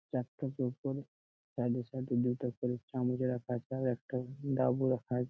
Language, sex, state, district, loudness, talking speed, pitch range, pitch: Bengali, male, West Bengal, Malda, -36 LUFS, 215 wpm, 125-130 Hz, 125 Hz